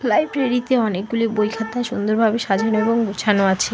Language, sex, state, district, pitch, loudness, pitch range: Bengali, female, West Bengal, Alipurduar, 225 Hz, -19 LUFS, 210-230 Hz